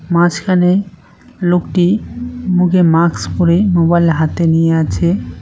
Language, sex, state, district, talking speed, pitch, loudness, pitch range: Bengali, male, West Bengal, Cooch Behar, 100 wpm, 175 Hz, -13 LUFS, 170-185 Hz